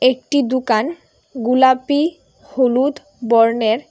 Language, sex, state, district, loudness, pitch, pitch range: Bengali, female, Tripura, West Tripura, -17 LUFS, 255 Hz, 235-280 Hz